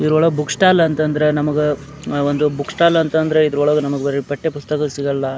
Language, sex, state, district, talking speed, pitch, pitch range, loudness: Kannada, male, Karnataka, Dharwad, 165 wpm, 150 Hz, 145-155 Hz, -17 LUFS